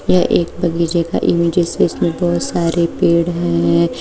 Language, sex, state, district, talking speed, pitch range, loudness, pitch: Hindi, female, Uttar Pradesh, Shamli, 180 wpm, 165-170 Hz, -16 LUFS, 170 Hz